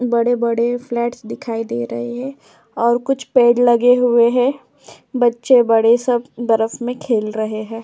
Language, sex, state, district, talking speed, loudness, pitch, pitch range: Hindi, female, Uttar Pradesh, Etah, 155 wpm, -17 LUFS, 240 Hz, 225-245 Hz